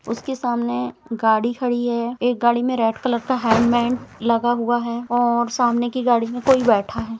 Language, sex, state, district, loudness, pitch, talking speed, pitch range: Hindi, female, Chhattisgarh, Rajnandgaon, -20 LUFS, 240 Hz, 185 wpm, 230-245 Hz